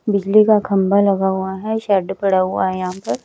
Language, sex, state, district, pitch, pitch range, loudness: Hindi, female, Chandigarh, Chandigarh, 195 Hz, 190-200 Hz, -17 LUFS